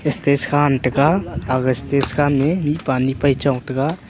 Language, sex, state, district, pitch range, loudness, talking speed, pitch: Wancho, male, Arunachal Pradesh, Longding, 130-145 Hz, -18 LUFS, 160 wpm, 140 Hz